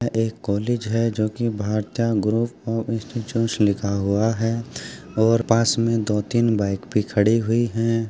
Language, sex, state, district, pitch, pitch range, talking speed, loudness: Hindi, male, Uttar Pradesh, Jyotiba Phule Nagar, 115 Hz, 105-115 Hz, 165 wpm, -22 LUFS